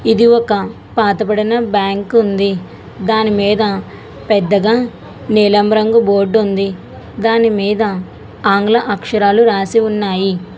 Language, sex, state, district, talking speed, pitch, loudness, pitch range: Telugu, female, Telangana, Hyderabad, 90 wpm, 210 Hz, -14 LUFS, 200-225 Hz